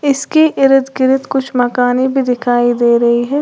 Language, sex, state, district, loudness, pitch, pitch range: Hindi, female, Uttar Pradesh, Lalitpur, -13 LUFS, 260 Hz, 245-270 Hz